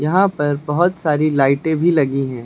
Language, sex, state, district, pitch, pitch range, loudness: Hindi, male, Uttar Pradesh, Lucknow, 150 Hz, 140-160 Hz, -17 LUFS